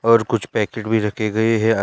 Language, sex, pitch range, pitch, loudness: Hindi, male, 110-115 Hz, 110 Hz, -19 LUFS